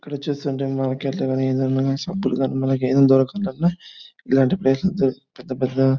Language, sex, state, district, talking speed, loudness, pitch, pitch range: Telugu, male, Andhra Pradesh, Anantapur, 130 wpm, -21 LUFS, 135 Hz, 130-145 Hz